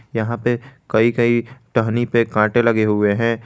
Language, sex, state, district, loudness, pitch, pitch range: Hindi, male, Jharkhand, Garhwa, -18 LUFS, 115 Hz, 110-120 Hz